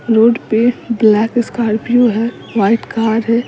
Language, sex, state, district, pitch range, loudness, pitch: Hindi, female, Bihar, Patna, 220-235 Hz, -14 LUFS, 230 Hz